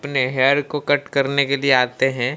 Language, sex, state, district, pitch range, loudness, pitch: Hindi, male, Odisha, Malkangiri, 130-140 Hz, -18 LUFS, 140 Hz